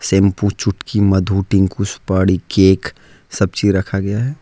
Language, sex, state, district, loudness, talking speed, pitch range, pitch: Hindi, male, Jharkhand, Ranchi, -16 LUFS, 150 wpm, 95-100 Hz, 100 Hz